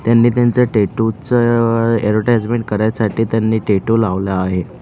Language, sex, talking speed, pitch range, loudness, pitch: Marathi, male, 125 wpm, 105-115 Hz, -15 LUFS, 115 Hz